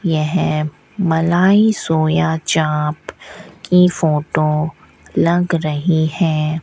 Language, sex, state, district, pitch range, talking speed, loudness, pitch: Hindi, female, Rajasthan, Bikaner, 155-175 Hz, 80 wpm, -16 LUFS, 160 Hz